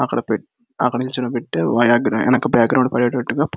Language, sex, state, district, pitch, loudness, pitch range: Telugu, male, Andhra Pradesh, Srikakulam, 125 Hz, -18 LUFS, 120-130 Hz